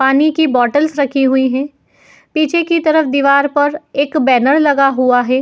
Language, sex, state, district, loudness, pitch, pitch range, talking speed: Hindi, female, Uttar Pradesh, Jalaun, -13 LUFS, 280 Hz, 265-305 Hz, 175 wpm